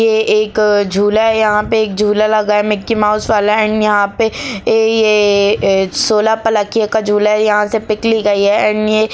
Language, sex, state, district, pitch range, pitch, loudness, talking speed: Hindi, female, Bihar, Gopalganj, 210-220 Hz, 215 Hz, -13 LUFS, 210 wpm